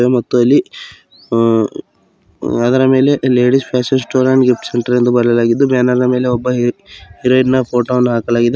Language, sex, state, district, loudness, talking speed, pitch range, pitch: Kannada, male, Karnataka, Bidar, -13 LUFS, 140 wpm, 120-130 Hz, 125 Hz